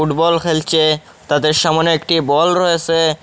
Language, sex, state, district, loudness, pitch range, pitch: Bengali, male, Assam, Hailakandi, -15 LUFS, 155-165 Hz, 160 Hz